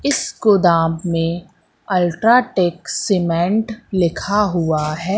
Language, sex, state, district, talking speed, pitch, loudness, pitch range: Hindi, female, Madhya Pradesh, Katni, 95 wpm, 180 Hz, -17 LUFS, 170-210 Hz